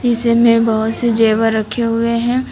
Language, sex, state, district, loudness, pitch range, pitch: Hindi, female, Uttar Pradesh, Lucknow, -14 LUFS, 225-235 Hz, 230 Hz